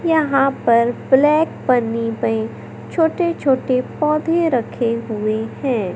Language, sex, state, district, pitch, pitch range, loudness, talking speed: Hindi, male, Madhya Pradesh, Katni, 255 Hz, 225-300 Hz, -18 LUFS, 100 wpm